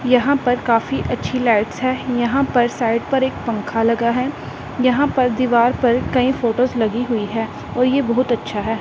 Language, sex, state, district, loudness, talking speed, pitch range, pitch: Hindi, female, Punjab, Pathankot, -18 LUFS, 190 wpm, 230-255 Hz, 245 Hz